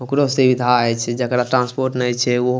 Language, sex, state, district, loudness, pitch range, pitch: Maithili, male, Bihar, Madhepura, -18 LUFS, 125-130 Hz, 125 Hz